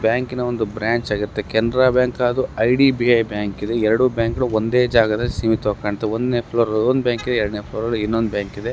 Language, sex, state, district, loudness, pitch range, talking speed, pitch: Kannada, male, Karnataka, Gulbarga, -19 LUFS, 110-125 Hz, 225 wpm, 115 Hz